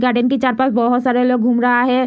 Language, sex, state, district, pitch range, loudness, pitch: Hindi, female, Bihar, Madhepura, 245-255 Hz, -15 LUFS, 250 Hz